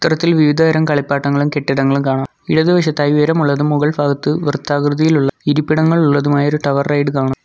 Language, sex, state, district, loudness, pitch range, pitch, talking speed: Malayalam, male, Kerala, Kollam, -15 LUFS, 140-155 Hz, 145 Hz, 120 wpm